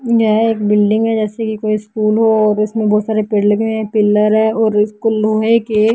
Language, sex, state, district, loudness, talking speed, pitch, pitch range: Hindi, female, Haryana, Jhajjar, -14 LUFS, 230 wpm, 215 Hz, 210-220 Hz